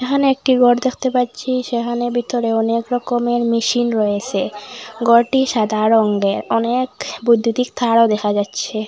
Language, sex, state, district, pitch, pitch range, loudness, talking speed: Bengali, female, Assam, Hailakandi, 235 Hz, 225-250 Hz, -17 LUFS, 130 wpm